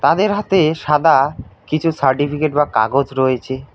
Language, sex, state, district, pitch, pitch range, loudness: Bengali, male, West Bengal, Alipurduar, 145 Hz, 130-160 Hz, -16 LUFS